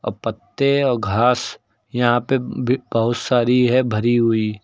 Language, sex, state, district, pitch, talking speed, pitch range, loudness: Hindi, male, Uttar Pradesh, Lucknow, 120 Hz, 140 wpm, 115-125 Hz, -19 LUFS